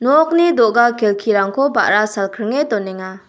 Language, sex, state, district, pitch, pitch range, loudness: Garo, female, Meghalaya, South Garo Hills, 220 Hz, 200-270 Hz, -15 LUFS